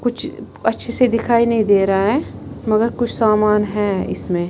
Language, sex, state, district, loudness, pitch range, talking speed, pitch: Hindi, female, Punjab, Kapurthala, -17 LUFS, 205-235 Hz, 175 wpm, 215 Hz